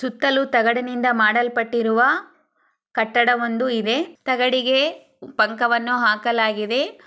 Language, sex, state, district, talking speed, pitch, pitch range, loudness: Kannada, female, Karnataka, Chamarajanagar, 85 wpm, 240 Hz, 230-255 Hz, -19 LUFS